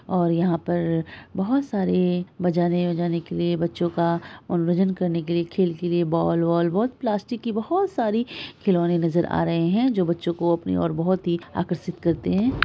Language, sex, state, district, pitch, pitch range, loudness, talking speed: Hindi, female, Bihar, Araria, 175 Hz, 170-190 Hz, -23 LUFS, 190 wpm